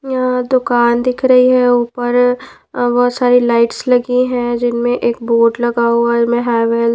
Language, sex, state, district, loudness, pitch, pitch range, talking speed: Hindi, female, Punjab, Pathankot, -13 LUFS, 245 Hz, 235-250 Hz, 165 wpm